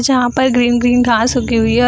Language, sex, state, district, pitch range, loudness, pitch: Hindi, female, Bihar, Samastipur, 240-250 Hz, -13 LUFS, 245 Hz